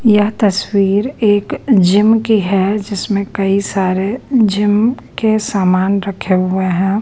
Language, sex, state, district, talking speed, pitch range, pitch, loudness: Hindi, female, Bihar, Patna, 130 wpm, 195-215 Hz, 200 Hz, -14 LUFS